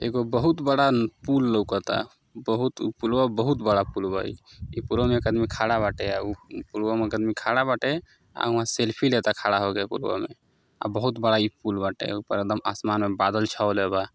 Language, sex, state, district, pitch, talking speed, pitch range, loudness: Maithili, male, Bihar, Samastipur, 110 Hz, 210 wpm, 105-120 Hz, -25 LUFS